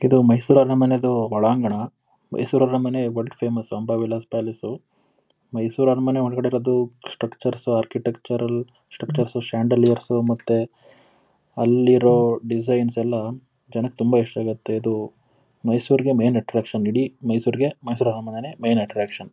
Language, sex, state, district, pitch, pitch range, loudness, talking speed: Kannada, male, Karnataka, Mysore, 120 Hz, 115-125 Hz, -21 LUFS, 130 wpm